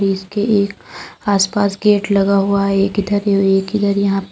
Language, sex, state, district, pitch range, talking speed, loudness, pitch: Hindi, female, Uttar Pradesh, Lalitpur, 195-205 Hz, 180 wpm, -16 LUFS, 200 Hz